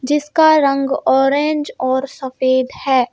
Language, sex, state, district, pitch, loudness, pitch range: Hindi, female, Madhya Pradesh, Bhopal, 275 Hz, -16 LUFS, 260-295 Hz